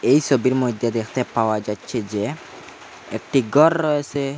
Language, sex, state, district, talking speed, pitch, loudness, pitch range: Bengali, male, Assam, Hailakandi, 135 wpm, 130 Hz, -20 LUFS, 115-140 Hz